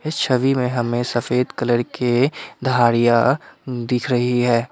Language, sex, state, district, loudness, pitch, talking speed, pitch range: Hindi, male, Assam, Kamrup Metropolitan, -19 LUFS, 125 Hz, 125 wpm, 120-130 Hz